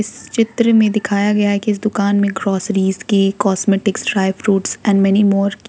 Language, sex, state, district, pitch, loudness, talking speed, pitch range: Hindi, female, Jharkhand, Ranchi, 200 Hz, -16 LUFS, 200 wpm, 195-210 Hz